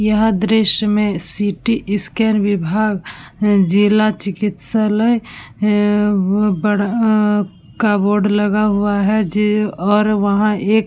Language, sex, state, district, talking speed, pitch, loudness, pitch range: Hindi, female, Uttar Pradesh, Budaun, 100 wpm, 210 Hz, -16 LUFS, 200-215 Hz